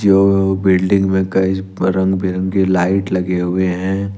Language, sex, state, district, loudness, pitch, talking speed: Hindi, male, Jharkhand, Ranchi, -16 LUFS, 95 Hz, 130 wpm